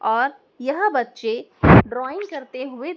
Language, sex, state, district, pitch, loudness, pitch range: Hindi, male, Madhya Pradesh, Dhar, 285 Hz, -19 LUFS, 260-410 Hz